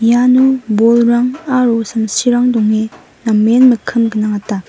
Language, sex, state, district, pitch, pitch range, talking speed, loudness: Garo, female, Meghalaya, West Garo Hills, 230 Hz, 220-250 Hz, 100 wpm, -12 LUFS